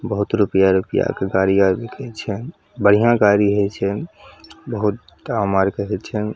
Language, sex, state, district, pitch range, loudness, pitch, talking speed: Maithili, male, Bihar, Samastipur, 95-110 Hz, -19 LUFS, 100 Hz, 180 wpm